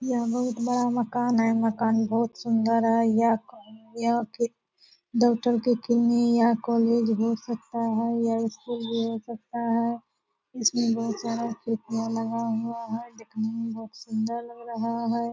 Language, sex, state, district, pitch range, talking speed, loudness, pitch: Hindi, female, Bihar, Purnia, 225-235 Hz, 145 wpm, -26 LUFS, 230 Hz